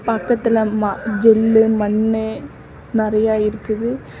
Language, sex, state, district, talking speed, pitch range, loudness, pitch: Tamil, female, Tamil Nadu, Namakkal, 70 wpm, 215-225 Hz, -17 LUFS, 220 Hz